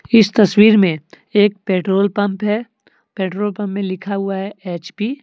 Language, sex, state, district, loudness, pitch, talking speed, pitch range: Hindi, male, Jharkhand, Deoghar, -17 LUFS, 205 Hz, 170 wpm, 190-210 Hz